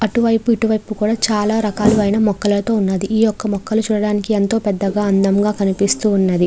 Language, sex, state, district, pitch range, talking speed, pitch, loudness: Telugu, female, Andhra Pradesh, Chittoor, 200-220 Hz, 165 wpm, 210 Hz, -16 LUFS